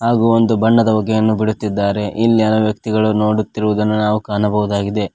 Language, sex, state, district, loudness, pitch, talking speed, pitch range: Kannada, male, Karnataka, Koppal, -16 LUFS, 110 Hz, 115 wpm, 105-110 Hz